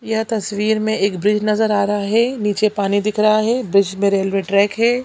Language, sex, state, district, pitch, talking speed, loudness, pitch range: Hindi, female, Chhattisgarh, Sukma, 210 Hz, 225 wpm, -17 LUFS, 200-220 Hz